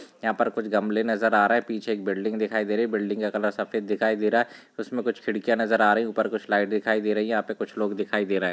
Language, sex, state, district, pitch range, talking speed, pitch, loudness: Hindi, male, Rajasthan, Churu, 105-110 Hz, 300 wpm, 110 Hz, -25 LUFS